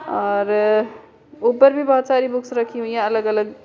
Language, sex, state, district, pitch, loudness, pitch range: Hindi, female, Uttar Pradesh, Budaun, 230 Hz, -18 LUFS, 215-255 Hz